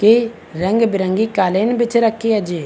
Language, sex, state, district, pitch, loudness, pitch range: Hindi, male, Bihar, Begusarai, 215 Hz, -17 LUFS, 190-230 Hz